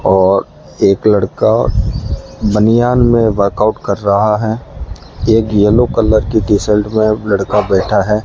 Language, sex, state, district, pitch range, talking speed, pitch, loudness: Hindi, male, Rajasthan, Bikaner, 100-110 Hz, 140 wpm, 105 Hz, -13 LUFS